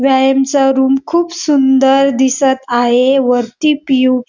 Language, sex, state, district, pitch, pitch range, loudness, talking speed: Marathi, female, Maharashtra, Dhule, 270 Hz, 260-275 Hz, -12 LUFS, 140 wpm